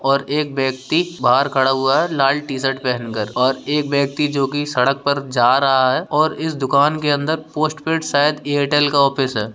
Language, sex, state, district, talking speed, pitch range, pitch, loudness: Hindi, male, Bihar, Darbhanga, 205 wpm, 135-150 Hz, 140 Hz, -18 LUFS